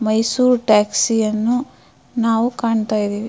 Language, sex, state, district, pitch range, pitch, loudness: Kannada, female, Karnataka, Mysore, 215-235 Hz, 225 Hz, -17 LUFS